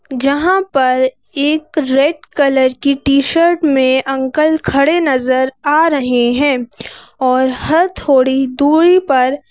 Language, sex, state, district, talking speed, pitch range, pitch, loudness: Hindi, female, Madhya Pradesh, Bhopal, 120 wpm, 260-310 Hz, 275 Hz, -13 LUFS